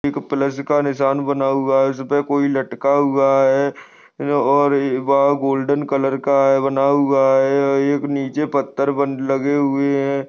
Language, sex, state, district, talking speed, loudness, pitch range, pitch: Hindi, male, Maharashtra, Nagpur, 155 wpm, -18 LUFS, 135-140 Hz, 140 Hz